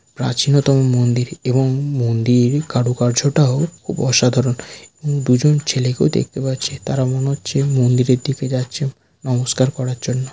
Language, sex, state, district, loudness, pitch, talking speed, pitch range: Bengali, male, West Bengal, Malda, -17 LUFS, 130 Hz, 115 wpm, 125-140 Hz